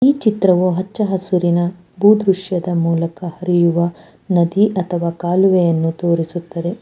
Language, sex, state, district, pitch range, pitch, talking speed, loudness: Kannada, female, Karnataka, Bangalore, 170-190 Hz, 180 Hz, 95 wpm, -17 LUFS